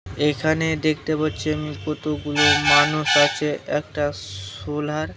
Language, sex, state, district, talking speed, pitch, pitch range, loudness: Bengali, male, West Bengal, Malda, 105 wpm, 150 Hz, 145-155 Hz, -21 LUFS